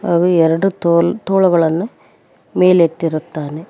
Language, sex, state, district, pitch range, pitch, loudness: Kannada, female, Karnataka, Koppal, 160-180 Hz, 170 Hz, -15 LUFS